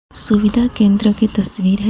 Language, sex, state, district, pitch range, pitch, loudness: Hindi, female, Jharkhand, Garhwa, 200-220 Hz, 210 Hz, -15 LUFS